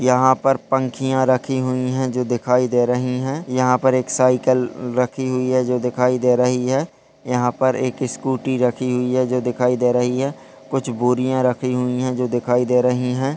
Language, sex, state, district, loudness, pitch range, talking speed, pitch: Hindi, male, Bihar, Begusarai, -19 LUFS, 125-130 Hz, 205 wpm, 125 Hz